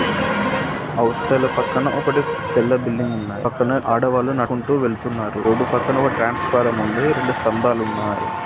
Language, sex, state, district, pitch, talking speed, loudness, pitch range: Telugu, male, Andhra Pradesh, Srikakulam, 120 Hz, 130 wpm, -20 LUFS, 110-125 Hz